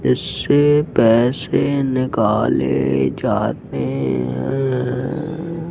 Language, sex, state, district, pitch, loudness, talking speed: Hindi, male, Madhya Pradesh, Dhar, 125 Hz, -18 LUFS, 55 wpm